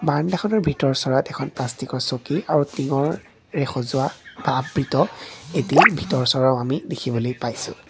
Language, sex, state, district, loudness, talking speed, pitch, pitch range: Assamese, male, Assam, Kamrup Metropolitan, -22 LUFS, 130 wpm, 135 Hz, 130-150 Hz